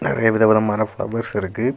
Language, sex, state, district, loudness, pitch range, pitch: Tamil, male, Tamil Nadu, Kanyakumari, -19 LUFS, 110-115 Hz, 110 Hz